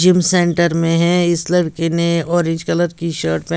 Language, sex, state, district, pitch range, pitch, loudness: Hindi, female, Bihar, West Champaran, 165-175 Hz, 170 Hz, -16 LUFS